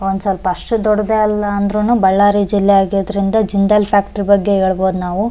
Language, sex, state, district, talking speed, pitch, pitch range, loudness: Kannada, male, Karnataka, Bellary, 145 wpm, 200 Hz, 195-210 Hz, -14 LUFS